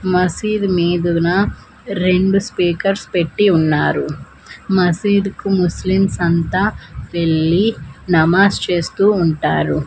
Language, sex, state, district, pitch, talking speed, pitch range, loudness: Telugu, female, Andhra Pradesh, Manyam, 180 Hz, 80 wpm, 170-195 Hz, -16 LUFS